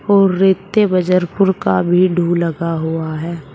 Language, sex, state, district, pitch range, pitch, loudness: Hindi, male, Uttar Pradesh, Shamli, 165-190 Hz, 175 Hz, -15 LUFS